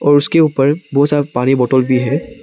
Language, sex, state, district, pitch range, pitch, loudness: Hindi, male, Arunachal Pradesh, Papum Pare, 130-150 Hz, 145 Hz, -14 LUFS